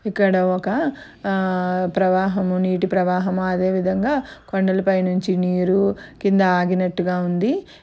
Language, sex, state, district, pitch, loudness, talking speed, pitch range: Telugu, female, Andhra Pradesh, Anantapur, 190 Hz, -20 LUFS, 100 wpm, 185-195 Hz